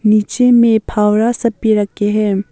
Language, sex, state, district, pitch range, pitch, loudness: Hindi, female, Arunachal Pradesh, Papum Pare, 210-230 Hz, 215 Hz, -13 LUFS